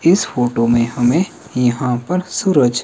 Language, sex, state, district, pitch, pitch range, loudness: Hindi, male, Himachal Pradesh, Shimla, 125 Hz, 120-175 Hz, -16 LUFS